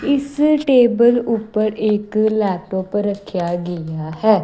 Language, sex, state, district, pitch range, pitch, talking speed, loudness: Punjabi, female, Punjab, Kapurthala, 190-235 Hz, 215 Hz, 110 wpm, -18 LUFS